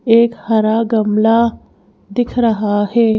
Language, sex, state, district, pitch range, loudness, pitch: Hindi, female, Madhya Pradesh, Bhopal, 215-230 Hz, -15 LUFS, 225 Hz